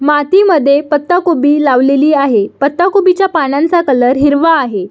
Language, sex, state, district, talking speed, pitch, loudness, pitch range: Marathi, female, Maharashtra, Solapur, 135 wpm, 295 Hz, -10 LUFS, 275-340 Hz